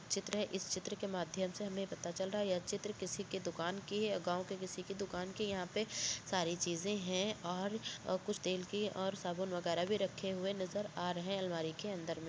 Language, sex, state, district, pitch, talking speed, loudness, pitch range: Hindi, female, Chhattisgarh, Bastar, 190 Hz, 250 wpm, -40 LUFS, 180-200 Hz